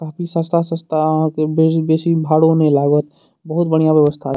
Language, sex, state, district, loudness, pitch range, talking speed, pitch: Maithili, male, Bihar, Madhepura, -16 LUFS, 155-165 Hz, 165 wpm, 160 Hz